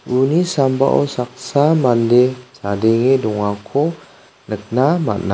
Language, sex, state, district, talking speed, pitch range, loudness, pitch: Garo, male, Meghalaya, South Garo Hills, 90 wpm, 115-145 Hz, -16 LUFS, 130 Hz